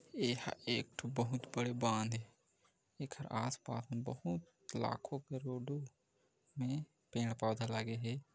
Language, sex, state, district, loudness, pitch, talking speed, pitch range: Hindi, male, Chhattisgarh, Korba, -41 LUFS, 120 Hz, 145 wpm, 115-130 Hz